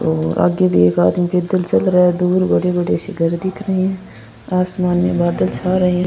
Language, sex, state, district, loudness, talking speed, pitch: Rajasthani, female, Rajasthan, Churu, -16 LUFS, 215 wpm, 180 Hz